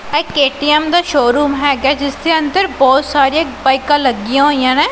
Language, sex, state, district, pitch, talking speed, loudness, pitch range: Punjabi, female, Punjab, Pathankot, 285 Hz, 170 wpm, -13 LUFS, 270-300 Hz